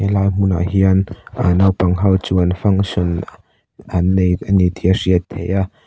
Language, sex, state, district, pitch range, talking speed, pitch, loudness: Mizo, male, Mizoram, Aizawl, 90-95 Hz, 165 wpm, 95 Hz, -16 LUFS